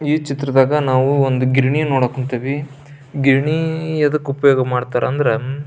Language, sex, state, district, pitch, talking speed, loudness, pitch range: Kannada, male, Karnataka, Belgaum, 140 Hz, 125 wpm, -17 LUFS, 130-145 Hz